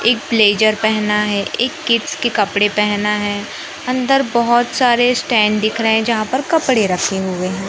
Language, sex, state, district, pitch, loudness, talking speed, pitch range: Hindi, male, Madhya Pradesh, Katni, 220 Hz, -15 LUFS, 180 wpm, 205-245 Hz